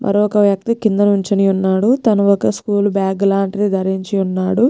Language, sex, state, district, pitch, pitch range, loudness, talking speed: Telugu, female, Telangana, Nalgonda, 200 Hz, 195-205 Hz, -15 LUFS, 130 wpm